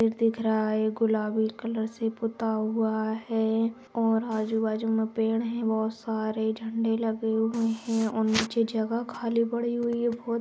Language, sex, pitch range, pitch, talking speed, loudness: Magahi, female, 220-230 Hz, 225 Hz, 180 wpm, -28 LUFS